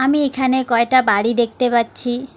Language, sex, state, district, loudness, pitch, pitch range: Bengali, female, West Bengal, Alipurduar, -17 LUFS, 250 Hz, 235-260 Hz